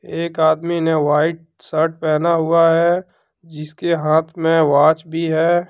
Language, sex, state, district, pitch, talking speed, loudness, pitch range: Hindi, male, Jharkhand, Deoghar, 165 Hz, 145 wpm, -17 LUFS, 155-170 Hz